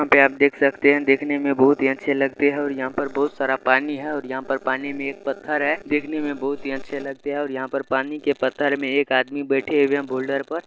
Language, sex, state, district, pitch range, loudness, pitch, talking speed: Hindi, male, Bihar, Araria, 135-145 Hz, -21 LUFS, 140 Hz, 260 wpm